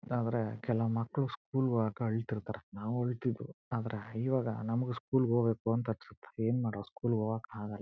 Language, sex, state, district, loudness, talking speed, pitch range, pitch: Kannada, male, Karnataka, Chamarajanagar, -35 LUFS, 145 wpm, 110-120 Hz, 115 Hz